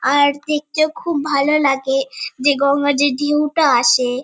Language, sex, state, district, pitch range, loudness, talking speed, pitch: Bengali, female, West Bengal, Kolkata, 270-300 Hz, -16 LUFS, 140 wpm, 285 Hz